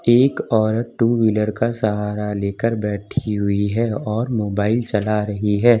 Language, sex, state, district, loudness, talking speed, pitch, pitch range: Hindi, male, Uttar Pradesh, Lucknow, -20 LUFS, 155 wpm, 110 Hz, 105-115 Hz